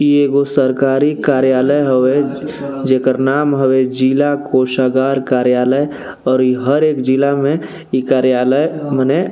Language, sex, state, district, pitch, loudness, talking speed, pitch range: Bhojpuri, male, Bihar, East Champaran, 135 Hz, -14 LUFS, 120 wpm, 130-145 Hz